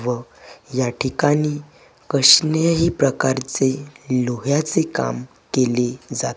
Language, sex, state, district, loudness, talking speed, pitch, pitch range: Marathi, male, Maharashtra, Gondia, -19 LUFS, 85 wpm, 130 Hz, 125-150 Hz